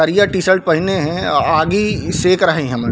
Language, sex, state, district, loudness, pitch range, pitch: Chhattisgarhi, male, Chhattisgarh, Bilaspur, -15 LUFS, 155-190 Hz, 180 Hz